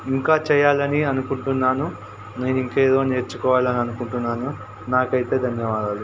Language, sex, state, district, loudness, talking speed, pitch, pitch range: Telugu, male, Telangana, Karimnagar, -21 LUFS, 80 wpm, 130 Hz, 120-135 Hz